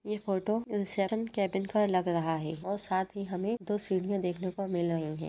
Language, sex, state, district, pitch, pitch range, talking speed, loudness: Hindi, female, Uttar Pradesh, Etah, 195 Hz, 185-210 Hz, 205 wpm, -32 LUFS